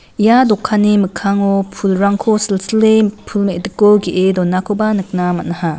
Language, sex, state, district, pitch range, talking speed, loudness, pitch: Garo, female, Meghalaya, West Garo Hills, 185-210 Hz, 115 wpm, -14 LUFS, 200 Hz